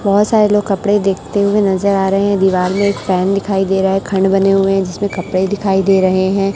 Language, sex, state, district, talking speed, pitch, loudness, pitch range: Hindi, male, Chhattisgarh, Raipur, 255 wpm, 195 Hz, -14 LUFS, 190-200 Hz